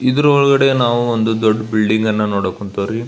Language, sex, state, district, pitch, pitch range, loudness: Kannada, male, Karnataka, Belgaum, 110 Hz, 105-125 Hz, -15 LUFS